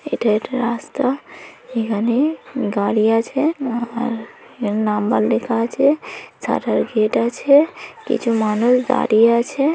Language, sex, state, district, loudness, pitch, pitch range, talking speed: Bengali, female, West Bengal, North 24 Parganas, -18 LUFS, 235 Hz, 225-260 Hz, 100 wpm